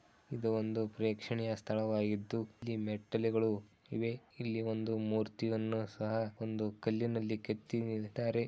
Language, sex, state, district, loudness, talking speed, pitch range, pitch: Kannada, male, Karnataka, Dharwad, -37 LUFS, 105 wpm, 110-115 Hz, 110 Hz